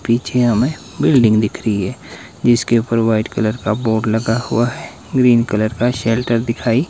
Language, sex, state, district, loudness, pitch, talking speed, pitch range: Hindi, male, Himachal Pradesh, Shimla, -16 LUFS, 115 Hz, 185 wpm, 110-120 Hz